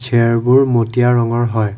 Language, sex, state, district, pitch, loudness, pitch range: Assamese, male, Assam, Kamrup Metropolitan, 120 Hz, -14 LUFS, 115-125 Hz